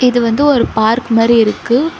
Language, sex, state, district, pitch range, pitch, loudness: Tamil, female, Tamil Nadu, Chennai, 225-255 Hz, 240 Hz, -12 LUFS